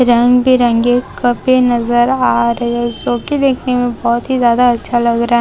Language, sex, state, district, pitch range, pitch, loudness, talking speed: Hindi, female, Chhattisgarh, Raipur, 235-250 Hz, 240 Hz, -13 LUFS, 190 wpm